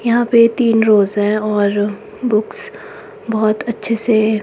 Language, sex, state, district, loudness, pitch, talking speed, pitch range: Hindi, female, Himachal Pradesh, Shimla, -15 LUFS, 220 Hz, 135 wpm, 215-235 Hz